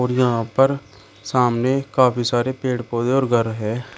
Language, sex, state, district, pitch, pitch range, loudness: Hindi, male, Uttar Pradesh, Shamli, 125 Hz, 115-130 Hz, -20 LUFS